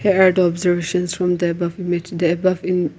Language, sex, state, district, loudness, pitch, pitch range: English, female, Nagaland, Kohima, -19 LUFS, 180 Hz, 175-185 Hz